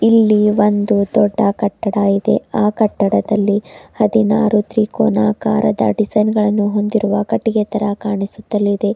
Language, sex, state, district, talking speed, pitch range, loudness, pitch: Kannada, female, Karnataka, Bidar, 100 wpm, 205-215 Hz, -15 LUFS, 210 Hz